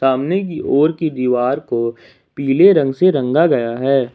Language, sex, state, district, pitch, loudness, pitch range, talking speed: Hindi, male, Jharkhand, Ranchi, 135 Hz, -16 LUFS, 125-160 Hz, 175 wpm